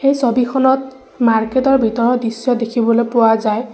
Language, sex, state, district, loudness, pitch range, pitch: Assamese, female, Assam, Sonitpur, -15 LUFS, 230-260 Hz, 240 Hz